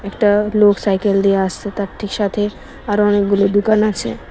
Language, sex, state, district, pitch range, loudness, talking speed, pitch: Bengali, female, Tripura, West Tripura, 200-210 Hz, -16 LUFS, 165 wpm, 205 Hz